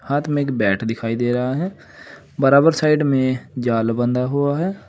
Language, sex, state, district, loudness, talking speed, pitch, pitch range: Hindi, male, Uttar Pradesh, Saharanpur, -19 LUFS, 185 wpm, 130 Hz, 120-145 Hz